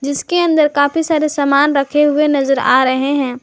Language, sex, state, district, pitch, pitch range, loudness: Hindi, male, Jharkhand, Garhwa, 285 Hz, 275-300 Hz, -14 LUFS